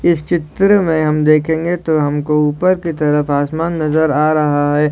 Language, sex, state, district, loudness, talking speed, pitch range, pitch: Hindi, male, Maharashtra, Solapur, -15 LUFS, 185 wpm, 150-165 Hz, 155 Hz